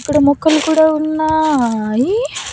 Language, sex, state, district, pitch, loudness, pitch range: Telugu, female, Andhra Pradesh, Annamaya, 310 Hz, -14 LUFS, 285-315 Hz